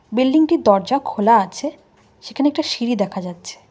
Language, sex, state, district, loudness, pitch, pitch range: Bengali, female, West Bengal, Cooch Behar, -18 LUFS, 245 Hz, 205-290 Hz